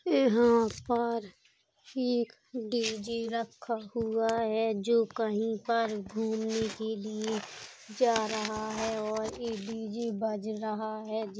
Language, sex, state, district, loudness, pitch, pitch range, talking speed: Bundeli, female, Uttar Pradesh, Jalaun, -31 LUFS, 225 Hz, 215-230 Hz, 125 wpm